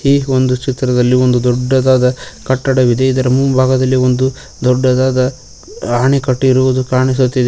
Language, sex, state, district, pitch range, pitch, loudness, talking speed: Kannada, male, Karnataka, Koppal, 125-130 Hz, 130 Hz, -13 LUFS, 105 wpm